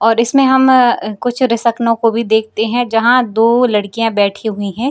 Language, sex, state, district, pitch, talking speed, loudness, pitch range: Hindi, female, Bihar, Jamui, 230 Hz, 185 wpm, -13 LUFS, 220-245 Hz